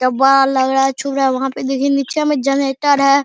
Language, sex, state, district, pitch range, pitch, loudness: Hindi, male, Bihar, Araria, 270-275 Hz, 270 Hz, -15 LUFS